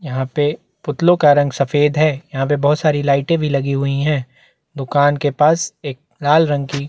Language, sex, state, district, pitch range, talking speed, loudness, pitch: Hindi, male, Chhattisgarh, Bastar, 140-150 Hz, 200 wpm, -16 LUFS, 145 Hz